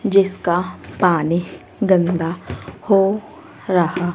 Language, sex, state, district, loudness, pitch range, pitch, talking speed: Hindi, female, Haryana, Rohtak, -18 LUFS, 175-195 Hz, 180 Hz, 70 wpm